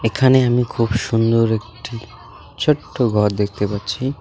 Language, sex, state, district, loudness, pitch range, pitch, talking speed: Bengali, male, West Bengal, Alipurduar, -18 LUFS, 105-120 Hz, 115 Hz, 130 wpm